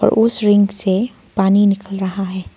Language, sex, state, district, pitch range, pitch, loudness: Hindi, female, Arunachal Pradesh, Lower Dibang Valley, 195-210 Hz, 200 Hz, -16 LUFS